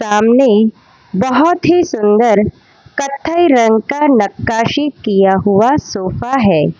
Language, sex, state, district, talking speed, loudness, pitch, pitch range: Hindi, female, Gujarat, Valsad, 105 wpm, -12 LUFS, 225 Hz, 205-285 Hz